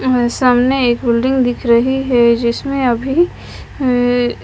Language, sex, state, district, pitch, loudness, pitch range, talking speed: Hindi, female, Punjab, Kapurthala, 245 Hz, -14 LUFS, 240-265 Hz, 135 wpm